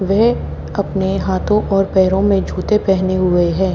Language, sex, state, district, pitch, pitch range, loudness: Hindi, female, Haryana, Jhajjar, 190 Hz, 185-195 Hz, -16 LUFS